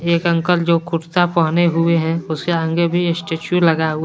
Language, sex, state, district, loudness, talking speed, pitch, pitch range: Hindi, male, Jharkhand, Deoghar, -17 LUFS, 195 wpm, 170 Hz, 165-170 Hz